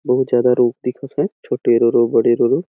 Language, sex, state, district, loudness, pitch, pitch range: Awadhi, male, Chhattisgarh, Balrampur, -16 LUFS, 125 Hz, 120-125 Hz